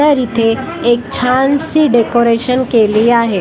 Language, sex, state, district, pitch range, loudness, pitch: Marathi, female, Maharashtra, Washim, 230-260 Hz, -12 LUFS, 240 Hz